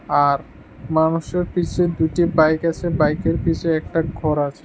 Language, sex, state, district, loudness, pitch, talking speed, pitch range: Bengali, male, Tripura, West Tripura, -20 LUFS, 160 Hz, 140 wpm, 155-170 Hz